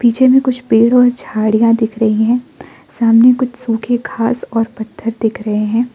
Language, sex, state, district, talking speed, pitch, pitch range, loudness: Hindi, female, Arunachal Pradesh, Lower Dibang Valley, 180 wpm, 230 Hz, 225-245 Hz, -14 LUFS